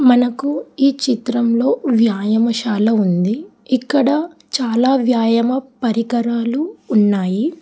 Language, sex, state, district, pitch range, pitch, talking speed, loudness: Telugu, female, Telangana, Hyderabad, 225-265 Hz, 245 Hz, 80 wpm, -17 LUFS